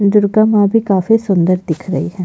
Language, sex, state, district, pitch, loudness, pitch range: Hindi, female, Chhattisgarh, Jashpur, 195 Hz, -13 LUFS, 180-215 Hz